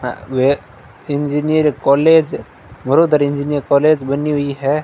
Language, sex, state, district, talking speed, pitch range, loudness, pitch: Hindi, male, Rajasthan, Bikaner, 110 wpm, 135-150 Hz, -15 LUFS, 145 Hz